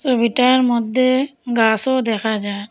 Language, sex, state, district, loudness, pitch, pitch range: Bengali, female, Assam, Hailakandi, -17 LUFS, 240 Hz, 220-255 Hz